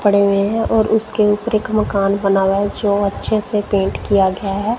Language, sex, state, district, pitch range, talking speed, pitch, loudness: Hindi, female, Punjab, Kapurthala, 195-215 Hz, 225 wpm, 205 Hz, -17 LUFS